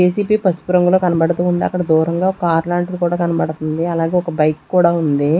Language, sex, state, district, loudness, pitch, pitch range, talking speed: Telugu, female, Andhra Pradesh, Sri Satya Sai, -16 LUFS, 175 Hz, 165-180 Hz, 180 wpm